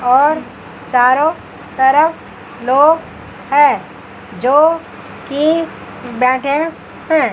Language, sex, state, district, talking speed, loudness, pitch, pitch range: Hindi, female, Chandigarh, Chandigarh, 75 wpm, -14 LUFS, 290 Hz, 255-315 Hz